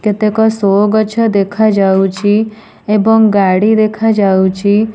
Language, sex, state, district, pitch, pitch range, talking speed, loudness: Odia, female, Odisha, Nuapada, 210 Hz, 200-220 Hz, 85 wpm, -11 LUFS